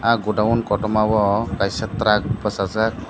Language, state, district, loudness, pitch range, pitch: Kokborok, Tripura, Dhalai, -20 LUFS, 105-110 Hz, 110 Hz